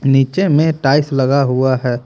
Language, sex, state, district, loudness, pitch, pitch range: Hindi, male, Haryana, Jhajjar, -14 LUFS, 135 Hz, 130-150 Hz